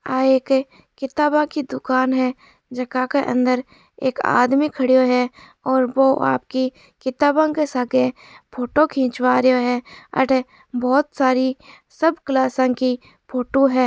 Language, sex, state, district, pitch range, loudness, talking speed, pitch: Marwari, female, Rajasthan, Churu, 255-275 Hz, -19 LUFS, 135 wpm, 260 Hz